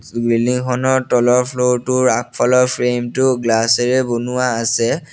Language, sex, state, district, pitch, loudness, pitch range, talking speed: Assamese, male, Assam, Sonitpur, 125 Hz, -16 LUFS, 120-125 Hz, 150 wpm